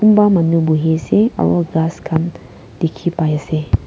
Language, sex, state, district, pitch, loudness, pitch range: Nagamese, female, Nagaland, Kohima, 160 Hz, -16 LUFS, 155-175 Hz